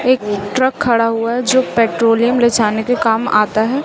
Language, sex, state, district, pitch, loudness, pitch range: Hindi, female, Chhattisgarh, Raipur, 230 Hz, -14 LUFS, 220-250 Hz